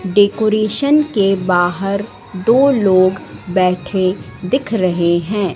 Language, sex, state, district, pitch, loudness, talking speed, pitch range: Hindi, female, Madhya Pradesh, Katni, 195 Hz, -15 LUFS, 95 wpm, 185-215 Hz